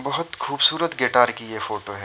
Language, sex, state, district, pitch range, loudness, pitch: Hindi, male, Uttar Pradesh, Jyotiba Phule Nagar, 110-155 Hz, -21 LUFS, 125 Hz